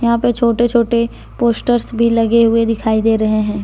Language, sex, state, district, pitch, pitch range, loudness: Hindi, female, Jharkhand, Deoghar, 230 Hz, 225-235 Hz, -15 LUFS